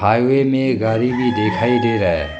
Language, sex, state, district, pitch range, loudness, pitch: Hindi, male, Arunachal Pradesh, Longding, 110-125 Hz, -17 LUFS, 120 Hz